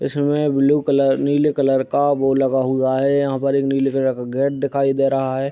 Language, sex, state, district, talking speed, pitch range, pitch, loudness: Hindi, male, Bihar, Madhepura, 260 wpm, 135-140 Hz, 135 Hz, -18 LUFS